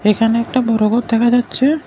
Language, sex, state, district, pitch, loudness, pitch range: Bengali, male, Tripura, West Tripura, 235 Hz, -15 LUFS, 225-245 Hz